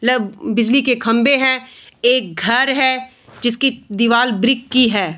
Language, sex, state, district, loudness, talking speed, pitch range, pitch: Hindi, female, Bihar, Bhagalpur, -16 LUFS, 140 wpm, 230-260 Hz, 245 Hz